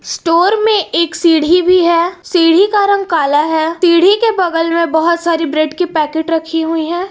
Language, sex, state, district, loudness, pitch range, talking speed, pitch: Hindi, female, Jharkhand, Palamu, -12 LUFS, 325-360 Hz, 195 wpm, 335 Hz